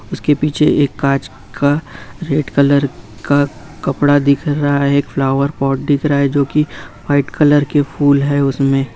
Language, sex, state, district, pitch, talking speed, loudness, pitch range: Hindi, male, Bihar, Jamui, 140 Hz, 175 wpm, -15 LUFS, 140-145 Hz